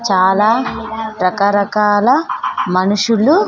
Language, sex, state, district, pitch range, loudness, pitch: Telugu, female, Andhra Pradesh, Sri Satya Sai, 200-255 Hz, -14 LUFS, 215 Hz